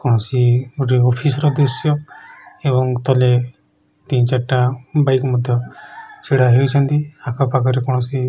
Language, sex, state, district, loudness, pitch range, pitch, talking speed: Odia, male, Odisha, Khordha, -16 LUFS, 125-140 Hz, 130 Hz, 125 wpm